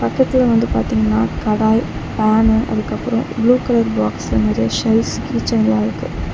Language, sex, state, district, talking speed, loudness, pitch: Tamil, female, Tamil Nadu, Chennai, 130 wpm, -16 LUFS, 210 Hz